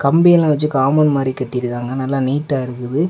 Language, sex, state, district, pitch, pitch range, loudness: Tamil, male, Tamil Nadu, Kanyakumari, 135 Hz, 130-150 Hz, -16 LUFS